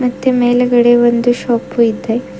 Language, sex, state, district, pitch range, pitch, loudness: Kannada, female, Karnataka, Bidar, 235-250 Hz, 245 Hz, -13 LUFS